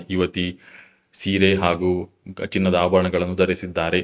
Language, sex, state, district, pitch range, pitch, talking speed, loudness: Kannada, male, Karnataka, Bangalore, 90-95 Hz, 90 Hz, 105 wpm, -21 LUFS